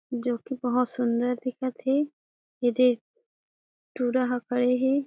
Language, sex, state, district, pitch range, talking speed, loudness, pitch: Chhattisgarhi, female, Chhattisgarh, Jashpur, 245-265 Hz, 120 wpm, -27 LUFS, 250 Hz